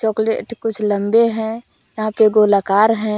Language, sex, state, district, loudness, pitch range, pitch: Hindi, female, Jharkhand, Palamu, -17 LUFS, 210-225 Hz, 220 Hz